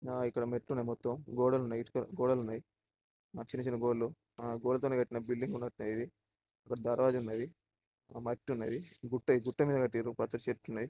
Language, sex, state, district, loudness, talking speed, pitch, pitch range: Telugu, male, Andhra Pradesh, Srikakulam, -36 LUFS, 130 wpm, 120 Hz, 115-125 Hz